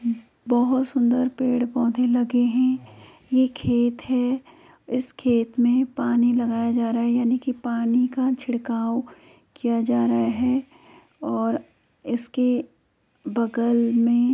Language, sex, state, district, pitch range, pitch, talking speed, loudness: Hindi, female, Uttar Pradesh, Jyotiba Phule Nagar, 235-255 Hz, 245 Hz, 125 wpm, -23 LUFS